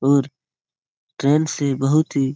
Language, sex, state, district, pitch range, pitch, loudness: Hindi, male, Bihar, Lakhisarai, 135-150 Hz, 140 Hz, -19 LUFS